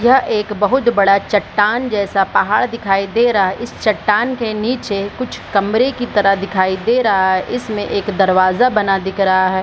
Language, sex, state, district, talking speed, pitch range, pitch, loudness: Hindi, female, Bihar, Supaul, 195 wpm, 195-235 Hz, 205 Hz, -15 LUFS